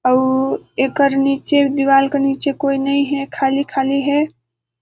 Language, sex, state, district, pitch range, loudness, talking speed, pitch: Hindi, female, Chhattisgarh, Balrampur, 270-280 Hz, -17 LUFS, 150 wpm, 275 Hz